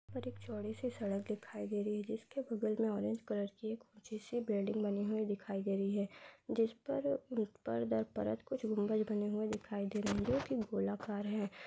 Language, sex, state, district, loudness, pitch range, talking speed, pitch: Hindi, female, Uttar Pradesh, Gorakhpur, -39 LUFS, 200-225 Hz, 215 wpm, 210 Hz